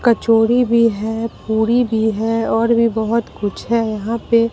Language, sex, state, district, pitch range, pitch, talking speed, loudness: Hindi, female, Bihar, Katihar, 220-230 Hz, 225 Hz, 170 wpm, -17 LUFS